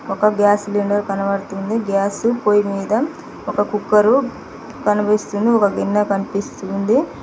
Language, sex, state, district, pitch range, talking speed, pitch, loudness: Telugu, female, Telangana, Mahabubabad, 200-220 Hz, 110 wpm, 205 Hz, -18 LUFS